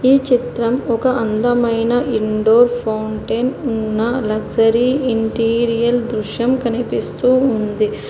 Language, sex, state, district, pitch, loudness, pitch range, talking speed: Telugu, female, Telangana, Hyderabad, 235 Hz, -17 LUFS, 220-245 Hz, 90 wpm